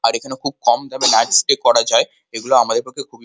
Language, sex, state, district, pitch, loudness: Bengali, male, West Bengal, Kolkata, 140 Hz, -16 LUFS